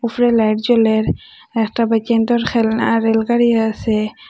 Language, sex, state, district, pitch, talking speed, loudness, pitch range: Bengali, female, Assam, Hailakandi, 225 Hz, 140 wpm, -16 LUFS, 220-235 Hz